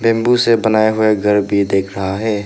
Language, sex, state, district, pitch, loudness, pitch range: Hindi, male, Arunachal Pradesh, Papum Pare, 110 Hz, -15 LUFS, 100-110 Hz